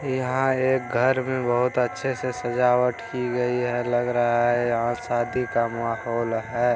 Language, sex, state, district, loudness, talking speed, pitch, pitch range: Hindi, male, Bihar, Araria, -24 LUFS, 170 wpm, 125 Hz, 120-125 Hz